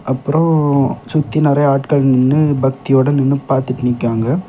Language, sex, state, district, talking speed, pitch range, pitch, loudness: Tamil, male, Tamil Nadu, Kanyakumari, 135 wpm, 130-145 Hz, 135 Hz, -14 LUFS